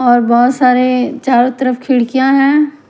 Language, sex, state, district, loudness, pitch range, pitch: Hindi, female, Punjab, Kapurthala, -12 LUFS, 245-270 Hz, 255 Hz